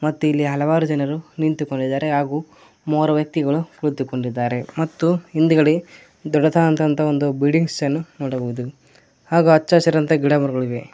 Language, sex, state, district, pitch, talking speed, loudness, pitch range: Kannada, male, Karnataka, Koppal, 150 Hz, 125 wpm, -19 LUFS, 140-160 Hz